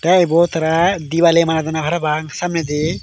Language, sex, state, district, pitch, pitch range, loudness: Chakma, male, Tripura, Dhalai, 165 Hz, 160-170 Hz, -16 LUFS